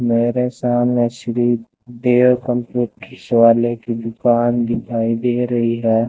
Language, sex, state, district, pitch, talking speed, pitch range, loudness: Hindi, male, Rajasthan, Bikaner, 120 Hz, 120 wpm, 115-125 Hz, -17 LUFS